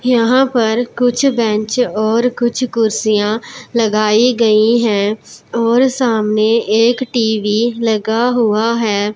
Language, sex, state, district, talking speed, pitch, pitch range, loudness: Hindi, male, Punjab, Pathankot, 110 wpm, 230 Hz, 215-245 Hz, -14 LUFS